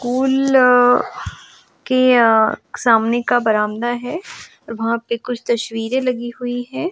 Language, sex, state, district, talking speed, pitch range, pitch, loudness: Hindi, female, Goa, North and South Goa, 120 wpm, 230-255 Hz, 245 Hz, -17 LUFS